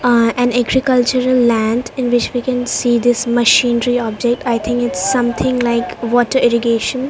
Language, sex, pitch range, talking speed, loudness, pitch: English, female, 235-250 Hz, 150 wpm, -15 LUFS, 245 Hz